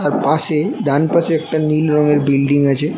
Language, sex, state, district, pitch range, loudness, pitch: Bengali, male, West Bengal, North 24 Parganas, 145-155 Hz, -15 LUFS, 150 Hz